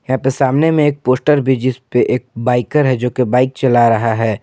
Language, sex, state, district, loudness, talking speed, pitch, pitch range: Hindi, male, Jharkhand, Ranchi, -14 LUFS, 230 wpm, 130 Hz, 125-135 Hz